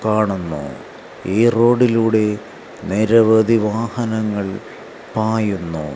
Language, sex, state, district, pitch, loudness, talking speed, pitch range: Malayalam, male, Kerala, Kasaragod, 110 Hz, -17 LUFS, 60 wpm, 100-115 Hz